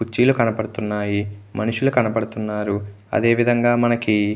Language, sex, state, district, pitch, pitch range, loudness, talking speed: Telugu, male, Andhra Pradesh, Krishna, 110 Hz, 105-120 Hz, -20 LUFS, 95 wpm